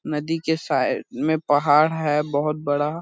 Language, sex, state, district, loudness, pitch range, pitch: Hindi, male, Bihar, Purnia, -22 LUFS, 145-160 Hz, 150 Hz